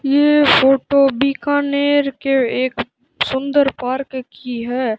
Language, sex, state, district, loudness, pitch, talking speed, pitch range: Hindi, male, Rajasthan, Bikaner, -16 LUFS, 270 Hz, 110 wpm, 255-280 Hz